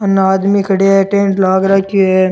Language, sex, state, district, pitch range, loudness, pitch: Rajasthani, male, Rajasthan, Churu, 190-195 Hz, -12 LUFS, 195 Hz